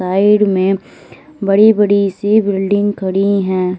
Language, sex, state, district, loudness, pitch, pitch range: Hindi, female, Uttar Pradesh, Lalitpur, -13 LUFS, 200 Hz, 190-205 Hz